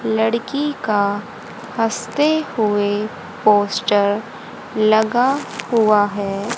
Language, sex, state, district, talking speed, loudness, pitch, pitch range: Hindi, female, Haryana, Rohtak, 75 wpm, -18 LUFS, 220 Hz, 205-240 Hz